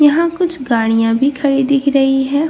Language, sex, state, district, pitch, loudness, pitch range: Hindi, female, Bihar, Katihar, 275 Hz, -14 LUFS, 270-295 Hz